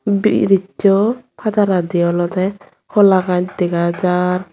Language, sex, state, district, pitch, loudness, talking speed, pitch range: Chakma, female, Tripura, Unakoti, 190 Hz, -16 LUFS, 95 wpm, 180-200 Hz